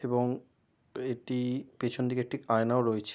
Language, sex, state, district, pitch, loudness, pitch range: Bengali, male, West Bengal, Jalpaiguri, 125 Hz, -32 LUFS, 120-125 Hz